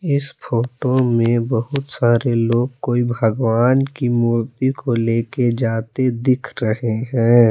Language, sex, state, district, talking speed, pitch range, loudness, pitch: Hindi, male, Jharkhand, Palamu, 130 wpm, 115-130 Hz, -18 LUFS, 120 Hz